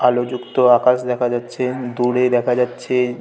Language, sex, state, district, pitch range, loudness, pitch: Bengali, male, West Bengal, North 24 Parganas, 120-125 Hz, -18 LUFS, 125 Hz